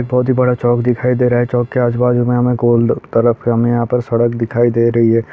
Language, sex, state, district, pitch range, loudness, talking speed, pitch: Hindi, male, Bihar, Gopalganj, 120-125 Hz, -14 LUFS, 260 wpm, 120 Hz